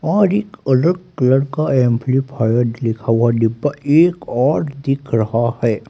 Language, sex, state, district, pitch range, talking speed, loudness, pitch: Hindi, male, Haryana, Rohtak, 115-150 Hz, 140 wpm, -17 LUFS, 130 Hz